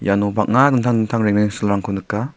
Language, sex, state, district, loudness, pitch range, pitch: Garo, male, Meghalaya, South Garo Hills, -18 LUFS, 100-115 Hz, 105 Hz